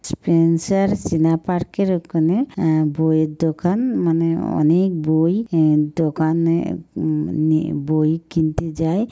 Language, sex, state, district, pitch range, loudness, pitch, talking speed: Bengali, female, West Bengal, North 24 Parganas, 155-175 Hz, -19 LUFS, 165 Hz, 120 wpm